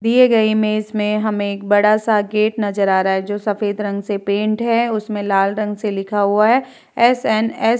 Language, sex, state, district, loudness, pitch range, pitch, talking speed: Hindi, female, Bihar, Vaishali, -17 LUFS, 205-220 Hz, 210 Hz, 215 wpm